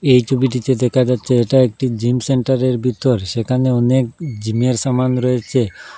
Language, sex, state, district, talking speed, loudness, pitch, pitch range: Bengali, male, Assam, Hailakandi, 130 wpm, -17 LUFS, 125 Hz, 120-130 Hz